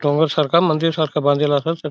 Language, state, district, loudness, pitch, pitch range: Bhili, Maharashtra, Dhule, -18 LUFS, 155 Hz, 145-165 Hz